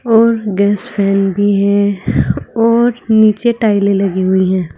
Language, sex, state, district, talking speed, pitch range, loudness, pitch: Hindi, female, Uttar Pradesh, Saharanpur, 140 wpm, 195-225 Hz, -13 LUFS, 205 Hz